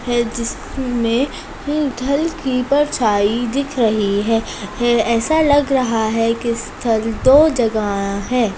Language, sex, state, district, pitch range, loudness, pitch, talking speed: Hindi, female, Rajasthan, Nagaur, 225-275 Hz, -17 LUFS, 240 Hz, 120 wpm